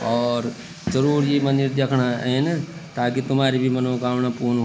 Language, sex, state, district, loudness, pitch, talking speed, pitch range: Garhwali, male, Uttarakhand, Tehri Garhwal, -22 LUFS, 130 Hz, 155 wpm, 125-135 Hz